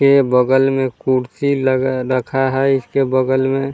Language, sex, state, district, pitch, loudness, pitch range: Hindi, male, Bihar, Vaishali, 130 Hz, -16 LUFS, 130-135 Hz